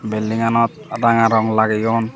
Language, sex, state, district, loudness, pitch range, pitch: Chakma, male, Tripura, Dhalai, -17 LUFS, 110-115 Hz, 115 Hz